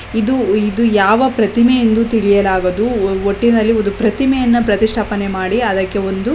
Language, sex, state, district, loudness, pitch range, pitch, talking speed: Kannada, female, Karnataka, Belgaum, -14 LUFS, 200-235 Hz, 220 Hz, 125 wpm